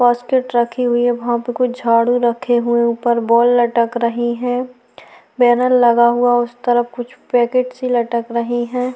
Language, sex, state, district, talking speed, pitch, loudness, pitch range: Hindi, female, Chhattisgarh, Sukma, 175 wpm, 240 Hz, -16 LUFS, 235-245 Hz